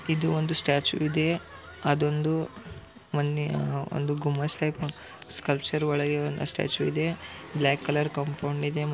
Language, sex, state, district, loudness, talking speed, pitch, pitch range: Kannada, male, Karnataka, Belgaum, -28 LUFS, 95 wpm, 150 Hz, 145-155 Hz